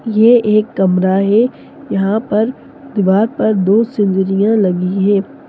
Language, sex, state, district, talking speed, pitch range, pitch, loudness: Hindi, female, Bihar, East Champaran, 130 wpm, 195-225 Hz, 205 Hz, -14 LUFS